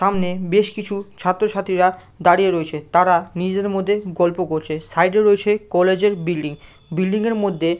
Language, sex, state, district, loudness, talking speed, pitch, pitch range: Bengali, male, West Bengal, Malda, -19 LUFS, 160 wpm, 185 Hz, 175-200 Hz